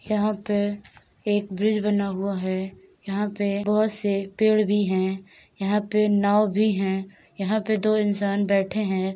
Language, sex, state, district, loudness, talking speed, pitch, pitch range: Hindi, female, Uttar Pradesh, Deoria, -24 LUFS, 190 wpm, 205 Hz, 195-210 Hz